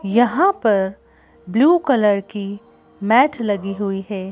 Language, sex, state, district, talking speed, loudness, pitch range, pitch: Hindi, female, Madhya Pradesh, Bhopal, 125 wpm, -18 LUFS, 200-245 Hz, 205 Hz